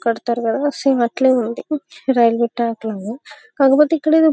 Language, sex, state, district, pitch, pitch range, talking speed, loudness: Telugu, female, Telangana, Karimnagar, 250 Hz, 230-290 Hz, 165 wpm, -17 LUFS